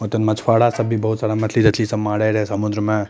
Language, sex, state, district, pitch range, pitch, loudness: Maithili, male, Bihar, Madhepura, 105-110 Hz, 110 Hz, -18 LUFS